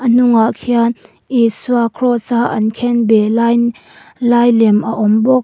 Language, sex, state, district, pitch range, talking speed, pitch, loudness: Mizo, female, Mizoram, Aizawl, 225-240 Hz, 155 wpm, 235 Hz, -13 LUFS